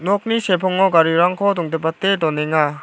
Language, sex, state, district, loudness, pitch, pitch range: Garo, male, Meghalaya, South Garo Hills, -17 LUFS, 175 Hz, 160-195 Hz